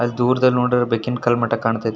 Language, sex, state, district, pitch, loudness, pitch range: Kannada, male, Karnataka, Shimoga, 120 Hz, -19 LUFS, 115-125 Hz